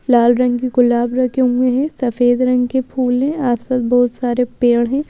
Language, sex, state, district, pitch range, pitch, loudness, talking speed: Hindi, female, Madhya Pradesh, Bhopal, 245-255 Hz, 250 Hz, -16 LUFS, 200 wpm